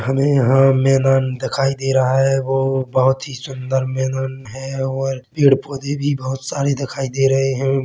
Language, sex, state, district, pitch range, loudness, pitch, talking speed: Hindi, male, Chhattisgarh, Bilaspur, 130-135 Hz, -18 LUFS, 135 Hz, 175 wpm